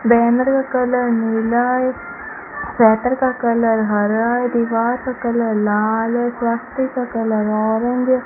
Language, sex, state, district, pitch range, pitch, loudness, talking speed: Hindi, female, Rajasthan, Bikaner, 225-250 Hz, 235 Hz, -17 LUFS, 140 wpm